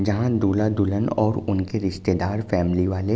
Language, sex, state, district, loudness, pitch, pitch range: Hindi, male, Uttar Pradesh, Jalaun, -22 LUFS, 100 Hz, 95-110 Hz